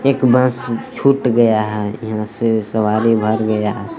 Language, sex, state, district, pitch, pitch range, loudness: Hindi, male, Jharkhand, Palamu, 110 Hz, 110-120 Hz, -16 LUFS